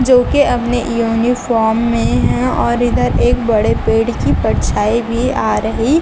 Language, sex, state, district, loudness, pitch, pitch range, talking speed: Hindi, female, Chhattisgarh, Raipur, -14 LUFS, 235 Hz, 225-245 Hz, 160 wpm